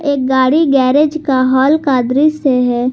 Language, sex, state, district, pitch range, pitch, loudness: Hindi, female, Jharkhand, Garhwa, 260-295 Hz, 270 Hz, -12 LUFS